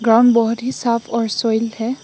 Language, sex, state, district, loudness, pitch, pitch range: Hindi, female, Assam, Hailakandi, -17 LUFS, 230 Hz, 225-240 Hz